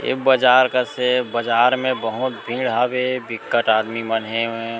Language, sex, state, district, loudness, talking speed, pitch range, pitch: Chhattisgarhi, male, Chhattisgarh, Sukma, -19 LUFS, 160 wpm, 115-130 Hz, 120 Hz